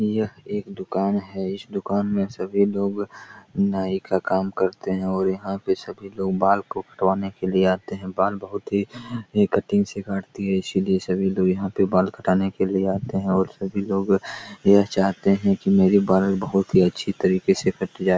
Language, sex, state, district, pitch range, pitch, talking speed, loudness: Hindi, male, Bihar, Araria, 95-100 Hz, 95 Hz, 200 wpm, -23 LUFS